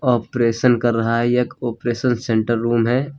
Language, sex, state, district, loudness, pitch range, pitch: Hindi, male, Uttar Pradesh, Lucknow, -19 LUFS, 115-125 Hz, 120 Hz